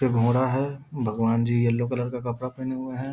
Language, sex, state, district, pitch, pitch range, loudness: Hindi, male, Bihar, Darbhanga, 125 Hz, 120-130 Hz, -26 LUFS